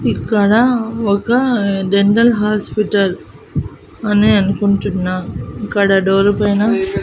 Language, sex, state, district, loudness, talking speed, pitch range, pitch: Telugu, female, Andhra Pradesh, Annamaya, -15 LUFS, 75 wpm, 200-215 Hz, 205 Hz